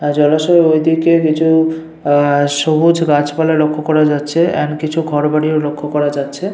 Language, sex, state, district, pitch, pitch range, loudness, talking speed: Bengali, male, West Bengal, Paschim Medinipur, 155 Hz, 150-160 Hz, -14 LUFS, 155 wpm